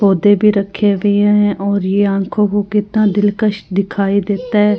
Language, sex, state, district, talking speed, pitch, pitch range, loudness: Hindi, female, Delhi, New Delhi, 175 wpm, 205 Hz, 200-210 Hz, -14 LUFS